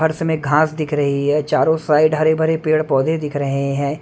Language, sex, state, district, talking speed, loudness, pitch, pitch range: Hindi, male, Haryana, Rohtak, 225 wpm, -17 LUFS, 155 Hz, 145-160 Hz